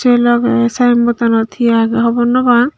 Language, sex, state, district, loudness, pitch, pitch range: Chakma, female, Tripura, Unakoti, -12 LUFS, 240 Hz, 235-245 Hz